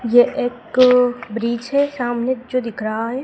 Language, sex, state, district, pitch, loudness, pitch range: Hindi, female, Madhya Pradesh, Dhar, 245 Hz, -18 LUFS, 235-255 Hz